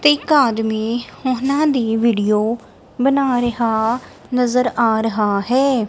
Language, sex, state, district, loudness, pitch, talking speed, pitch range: Punjabi, female, Punjab, Kapurthala, -17 LUFS, 240 Hz, 120 wpm, 225-260 Hz